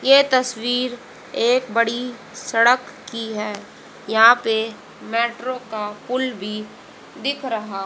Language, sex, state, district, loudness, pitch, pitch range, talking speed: Hindi, female, Haryana, Rohtak, -20 LUFS, 235 Hz, 220-255 Hz, 115 wpm